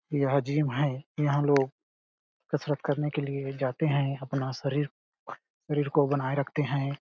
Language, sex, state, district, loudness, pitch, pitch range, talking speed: Hindi, male, Chhattisgarh, Balrampur, -29 LUFS, 140 Hz, 135-145 Hz, 165 wpm